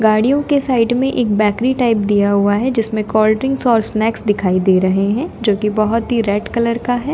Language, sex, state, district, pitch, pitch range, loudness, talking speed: Hindi, female, Delhi, New Delhi, 220 Hz, 210-245 Hz, -15 LUFS, 220 wpm